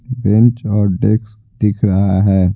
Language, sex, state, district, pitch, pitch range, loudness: Hindi, male, Bihar, Patna, 105 Hz, 100-110 Hz, -14 LUFS